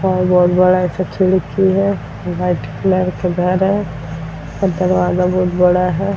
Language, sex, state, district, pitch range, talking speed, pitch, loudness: Hindi, female, Bihar, Vaishali, 180-190 Hz, 155 wpm, 180 Hz, -15 LUFS